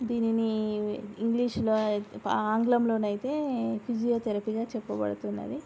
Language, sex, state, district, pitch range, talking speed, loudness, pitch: Telugu, female, Andhra Pradesh, Srikakulam, 210-235 Hz, 95 wpm, -29 LUFS, 225 Hz